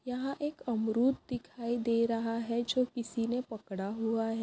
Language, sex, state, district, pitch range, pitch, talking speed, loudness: Hindi, male, Bihar, Begusarai, 225-250 Hz, 235 Hz, 175 wpm, -33 LUFS